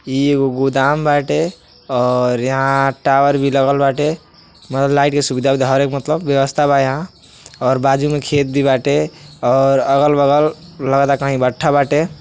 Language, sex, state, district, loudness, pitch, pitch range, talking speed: Bhojpuri, male, Uttar Pradesh, Deoria, -15 LUFS, 140 Hz, 135-145 Hz, 155 wpm